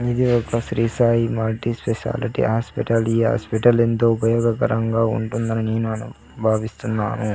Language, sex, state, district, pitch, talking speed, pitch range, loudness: Telugu, male, Andhra Pradesh, Sri Satya Sai, 115 Hz, 115 wpm, 110-115 Hz, -20 LUFS